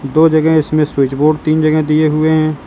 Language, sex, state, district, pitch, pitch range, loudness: Hindi, female, Uttar Pradesh, Lucknow, 155 Hz, 150-155 Hz, -13 LUFS